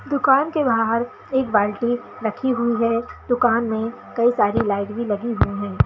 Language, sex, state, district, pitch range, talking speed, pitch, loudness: Hindi, female, Bihar, Kishanganj, 220-250 Hz, 175 wpm, 235 Hz, -21 LUFS